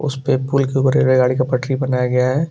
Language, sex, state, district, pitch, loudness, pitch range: Hindi, male, Uttar Pradesh, Gorakhpur, 130 Hz, -17 LUFS, 130-135 Hz